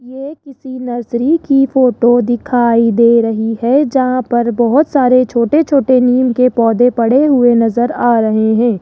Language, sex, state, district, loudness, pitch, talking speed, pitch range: Hindi, male, Rajasthan, Jaipur, -12 LUFS, 245 Hz, 165 wpm, 235-265 Hz